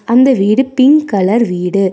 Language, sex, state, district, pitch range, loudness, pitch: Tamil, female, Tamil Nadu, Nilgiris, 195-265 Hz, -11 LUFS, 230 Hz